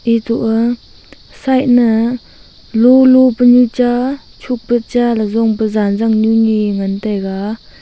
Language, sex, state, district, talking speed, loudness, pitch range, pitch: Wancho, female, Arunachal Pradesh, Longding, 140 wpm, -13 LUFS, 220-245 Hz, 230 Hz